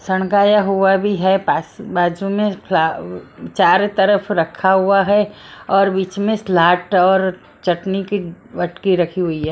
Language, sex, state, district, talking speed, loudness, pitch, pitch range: Hindi, female, Maharashtra, Mumbai Suburban, 150 wpm, -16 LUFS, 190 Hz, 180-200 Hz